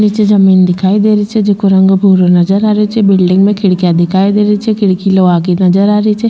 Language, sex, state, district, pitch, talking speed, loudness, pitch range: Rajasthani, female, Rajasthan, Churu, 195 Hz, 255 wpm, -9 LUFS, 185-210 Hz